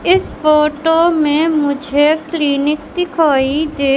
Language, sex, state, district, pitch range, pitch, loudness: Hindi, male, Madhya Pradesh, Katni, 290-325 Hz, 305 Hz, -14 LUFS